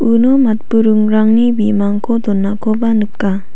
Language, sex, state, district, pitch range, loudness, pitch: Garo, female, Meghalaya, South Garo Hills, 210-230 Hz, -13 LUFS, 220 Hz